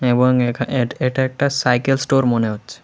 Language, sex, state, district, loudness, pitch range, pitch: Bengali, male, Tripura, West Tripura, -18 LUFS, 120-135 Hz, 125 Hz